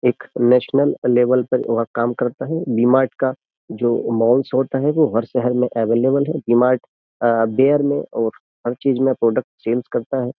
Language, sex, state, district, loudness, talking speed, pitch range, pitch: Hindi, male, Uttar Pradesh, Jyotiba Phule Nagar, -18 LUFS, 180 wpm, 120-130 Hz, 125 Hz